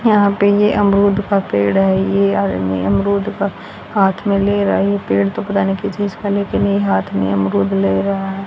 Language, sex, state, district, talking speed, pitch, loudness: Hindi, female, Haryana, Rohtak, 225 wpm, 195 Hz, -16 LUFS